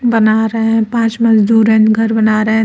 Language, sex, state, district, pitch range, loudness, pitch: Hindi, female, Uttar Pradesh, Lucknow, 220-225 Hz, -12 LUFS, 220 Hz